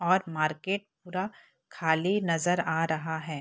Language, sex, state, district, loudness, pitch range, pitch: Hindi, female, Bihar, Purnia, -29 LUFS, 160-185 Hz, 170 Hz